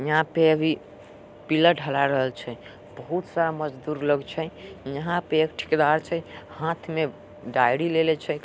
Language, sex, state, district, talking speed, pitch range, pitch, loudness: Angika, male, Bihar, Samastipur, 165 wpm, 140-160 Hz, 155 Hz, -24 LUFS